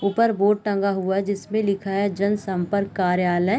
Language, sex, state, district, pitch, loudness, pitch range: Hindi, female, Uttar Pradesh, Deoria, 200 Hz, -22 LUFS, 190-205 Hz